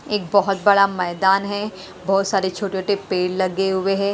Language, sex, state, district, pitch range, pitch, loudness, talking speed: Hindi, female, Haryana, Rohtak, 190-200 Hz, 195 Hz, -20 LUFS, 175 wpm